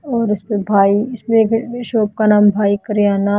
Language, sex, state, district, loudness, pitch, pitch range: Hindi, female, Haryana, Jhajjar, -15 LUFS, 210 Hz, 205-225 Hz